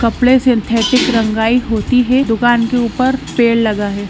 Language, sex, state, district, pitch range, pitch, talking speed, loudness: Hindi, female, Bihar, Muzaffarpur, 225-250 Hz, 235 Hz, 160 wpm, -13 LUFS